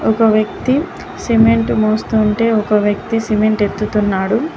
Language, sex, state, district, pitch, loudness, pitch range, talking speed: Telugu, female, Telangana, Mahabubabad, 215 Hz, -15 LUFS, 210-225 Hz, 105 wpm